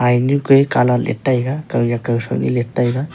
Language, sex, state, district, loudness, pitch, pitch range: Wancho, male, Arunachal Pradesh, Longding, -17 LUFS, 125 Hz, 120-135 Hz